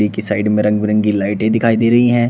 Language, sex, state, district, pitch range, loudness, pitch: Hindi, male, Uttar Pradesh, Shamli, 105-115 Hz, -15 LUFS, 105 Hz